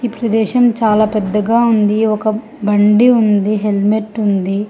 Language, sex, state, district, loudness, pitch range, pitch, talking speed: Telugu, female, Telangana, Hyderabad, -14 LUFS, 210-225 Hz, 215 Hz, 115 wpm